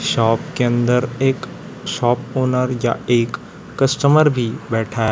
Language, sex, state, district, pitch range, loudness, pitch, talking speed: Hindi, male, Chhattisgarh, Raipur, 120-135 Hz, -18 LUFS, 125 Hz, 140 wpm